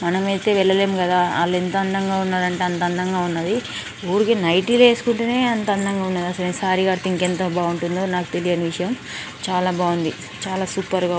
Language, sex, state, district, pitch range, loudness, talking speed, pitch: Telugu, female, Telangana, Nalgonda, 180-195 Hz, -20 LUFS, 155 wpm, 185 Hz